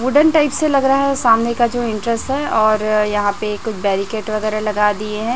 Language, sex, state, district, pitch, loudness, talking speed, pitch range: Hindi, female, Chhattisgarh, Raipur, 220 Hz, -17 LUFS, 215 wpm, 215-260 Hz